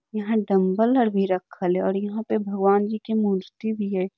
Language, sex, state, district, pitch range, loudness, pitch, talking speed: Magahi, female, Bihar, Lakhisarai, 190-220 Hz, -23 LUFS, 200 Hz, 215 wpm